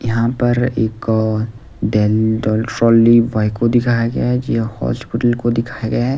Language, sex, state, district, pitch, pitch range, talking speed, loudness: Hindi, male, Delhi, New Delhi, 115 Hz, 110-120 Hz, 145 wpm, -16 LUFS